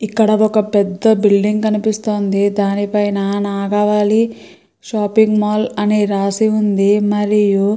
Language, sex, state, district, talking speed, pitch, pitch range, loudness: Telugu, female, Andhra Pradesh, Srikakulam, 115 wpm, 210 Hz, 205-215 Hz, -15 LUFS